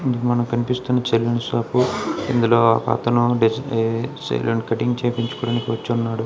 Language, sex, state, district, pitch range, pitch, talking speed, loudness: Telugu, male, Andhra Pradesh, Krishna, 115-120 Hz, 120 Hz, 115 wpm, -20 LUFS